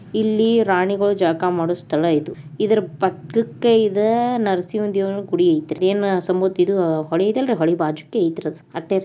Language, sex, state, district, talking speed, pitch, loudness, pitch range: Kannada, female, Karnataka, Bijapur, 140 wpm, 190 Hz, -19 LUFS, 170-215 Hz